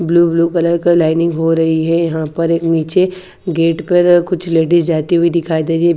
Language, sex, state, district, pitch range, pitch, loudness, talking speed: Hindi, female, Bihar, Katihar, 165-170 Hz, 170 Hz, -14 LUFS, 220 wpm